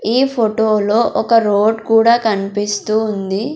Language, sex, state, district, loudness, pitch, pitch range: Telugu, female, Andhra Pradesh, Sri Satya Sai, -15 LUFS, 220 Hz, 205-230 Hz